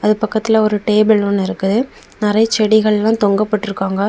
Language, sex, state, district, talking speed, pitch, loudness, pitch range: Tamil, female, Tamil Nadu, Kanyakumari, 160 wpm, 215 Hz, -15 LUFS, 205-220 Hz